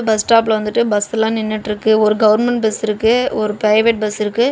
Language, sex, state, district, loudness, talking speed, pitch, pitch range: Tamil, female, Tamil Nadu, Namakkal, -15 LUFS, 185 wpm, 220 Hz, 210-230 Hz